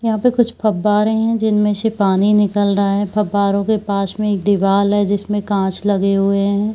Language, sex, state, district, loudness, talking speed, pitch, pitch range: Hindi, female, Chhattisgarh, Bilaspur, -16 LUFS, 205 wpm, 205 Hz, 200-215 Hz